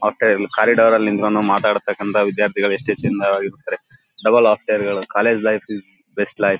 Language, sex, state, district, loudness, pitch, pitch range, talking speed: Kannada, male, Karnataka, Bellary, -17 LUFS, 105 Hz, 100-105 Hz, 170 wpm